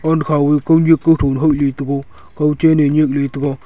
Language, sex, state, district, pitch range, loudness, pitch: Wancho, male, Arunachal Pradesh, Longding, 140-160 Hz, -15 LUFS, 150 Hz